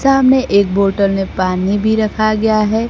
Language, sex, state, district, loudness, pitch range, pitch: Hindi, female, Bihar, Kaimur, -14 LUFS, 195-220 Hz, 215 Hz